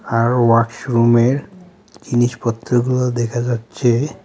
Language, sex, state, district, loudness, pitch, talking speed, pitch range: Bengali, male, West Bengal, Alipurduar, -17 LUFS, 120 Hz, 70 wpm, 115-125 Hz